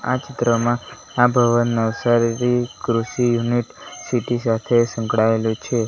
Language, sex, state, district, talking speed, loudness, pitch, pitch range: Gujarati, male, Gujarat, Valsad, 125 wpm, -20 LUFS, 120 Hz, 115-120 Hz